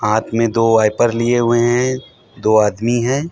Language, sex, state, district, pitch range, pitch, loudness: Hindi, male, Uttar Pradesh, Hamirpur, 110-120 Hz, 120 Hz, -15 LUFS